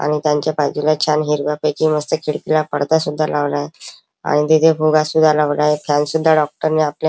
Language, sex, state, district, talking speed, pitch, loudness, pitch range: Marathi, male, Maharashtra, Chandrapur, 180 wpm, 150 Hz, -16 LUFS, 150-155 Hz